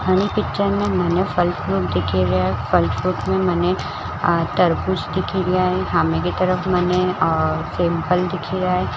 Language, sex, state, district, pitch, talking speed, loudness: Marwari, female, Rajasthan, Churu, 180 Hz, 145 wpm, -20 LUFS